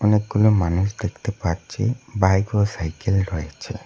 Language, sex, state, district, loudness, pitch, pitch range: Bengali, male, West Bengal, Cooch Behar, -22 LUFS, 100 Hz, 95-105 Hz